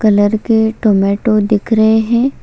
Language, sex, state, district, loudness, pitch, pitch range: Hindi, female, Chhattisgarh, Sukma, -13 LUFS, 220 Hz, 210-225 Hz